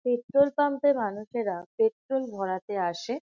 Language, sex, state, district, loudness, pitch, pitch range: Bengali, female, West Bengal, Kolkata, -27 LUFS, 245 Hz, 200-280 Hz